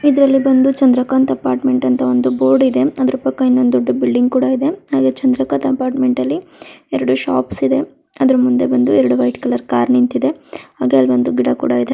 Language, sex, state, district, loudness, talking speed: Kannada, female, Karnataka, Raichur, -15 LUFS, 175 wpm